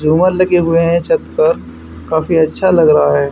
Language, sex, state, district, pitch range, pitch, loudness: Hindi, male, Haryana, Charkhi Dadri, 160-185 Hz, 170 Hz, -13 LUFS